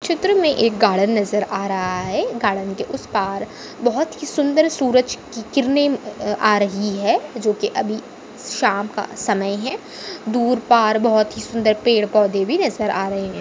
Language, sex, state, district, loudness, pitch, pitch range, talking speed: Hindi, female, Maharashtra, Dhule, -19 LUFS, 215 Hz, 205-250 Hz, 185 wpm